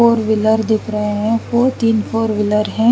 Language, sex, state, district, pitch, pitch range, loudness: Hindi, female, Chandigarh, Chandigarh, 220 Hz, 215-230 Hz, -16 LUFS